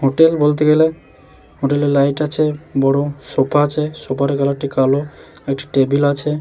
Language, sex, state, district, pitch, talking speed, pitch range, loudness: Bengali, male, West Bengal, Jalpaiguri, 140 Hz, 160 wpm, 140-150 Hz, -16 LUFS